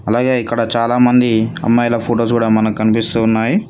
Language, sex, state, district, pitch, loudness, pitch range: Telugu, male, Telangana, Mahabubabad, 115 Hz, -14 LUFS, 110-120 Hz